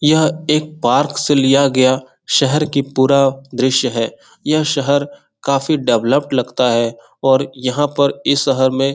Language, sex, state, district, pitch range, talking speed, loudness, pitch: Hindi, male, Bihar, Jahanabad, 130-145 Hz, 160 wpm, -15 LUFS, 140 Hz